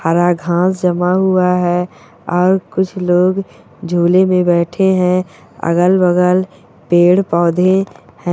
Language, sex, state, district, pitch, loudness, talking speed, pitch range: Hindi, female, Chhattisgarh, Bilaspur, 180 Hz, -14 LUFS, 120 wpm, 175-185 Hz